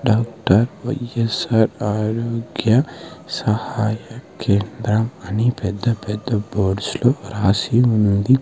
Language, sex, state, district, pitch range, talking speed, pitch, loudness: Telugu, male, Andhra Pradesh, Sri Satya Sai, 105-120 Hz, 85 wpm, 110 Hz, -20 LUFS